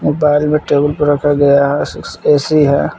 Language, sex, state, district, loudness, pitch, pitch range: Hindi, male, Jharkhand, Palamu, -13 LUFS, 145 Hz, 145-150 Hz